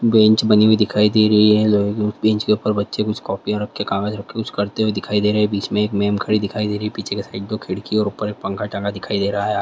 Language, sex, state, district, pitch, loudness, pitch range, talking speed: Hindi, male, Andhra Pradesh, Guntur, 105 Hz, -19 LUFS, 100-105 Hz, 285 wpm